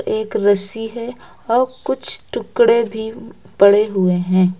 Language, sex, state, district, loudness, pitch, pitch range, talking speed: Hindi, female, Uttar Pradesh, Lucknow, -17 LUFS, 225 Hz, 200-255 Hz, 130 wpm